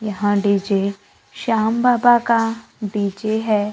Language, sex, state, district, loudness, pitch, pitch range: Hindi, male, Maharashtra, Gondia, -19 LUFS, 215 Hz, 205-225 Hz